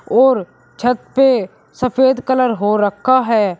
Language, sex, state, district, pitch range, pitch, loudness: Hindi, male, Uttar Pradesh, Shamli, 205-260 Hz, 245 Hz, -15 LUFS